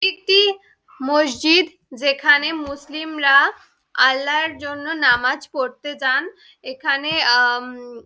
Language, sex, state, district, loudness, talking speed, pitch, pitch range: Bengali, female, West Bengal, Dakshin Dinajpur, -18 LUFS, 95 wpm, 290 Hz, 260-320 Hz